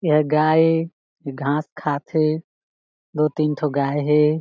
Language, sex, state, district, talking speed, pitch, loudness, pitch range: Chhattisgarhi, male, Chhattisgarh, Jashpur, 135 wpm, 150 Hz, -20 LUFS, 150-155 Hz